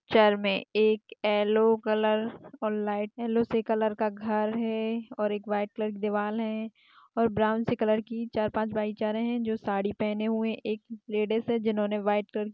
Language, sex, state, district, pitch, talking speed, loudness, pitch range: Hindi, female, Chhattisgarh, Bastar, 215 Hz, 200 wpm, -28 LUFS, 210-225 Hz